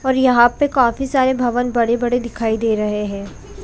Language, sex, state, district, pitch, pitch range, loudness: Hindi, female, Chhattisgarh, Bilaspur, 240 Hz, 225-260 Hz, -17 LUFS